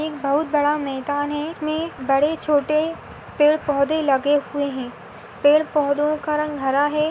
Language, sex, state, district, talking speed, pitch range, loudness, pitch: Hindi, female, Maharashtra, Sindhudurg, 135 wpm, 285-305 Hz, -21 LUFS, 295 Hz